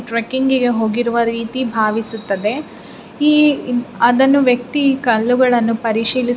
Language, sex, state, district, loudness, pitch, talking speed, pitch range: Kannada, female, Karnataka, Raichur, -16 LUFS, 240 Hz, 85 wpm, 230-260 Hz